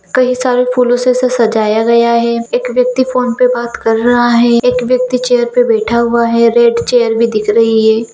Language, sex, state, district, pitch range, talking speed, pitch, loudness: Hindi, female, Bihar, Gopalganj, 230-250 Hz, 215 wpm, 235 Hz, -11 LUFS